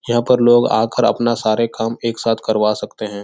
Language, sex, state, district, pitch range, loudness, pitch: Hindi, male, Bihar, Jahanabad, 110-120 Hz, -16 LUFS, 115 Hz